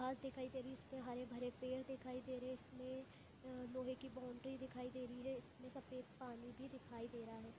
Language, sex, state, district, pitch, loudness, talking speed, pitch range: Hindi, female, Chhattisgarh, Bilaspur, 255 Hz, -51 LUFS, 230 wpm, 250-260 Hz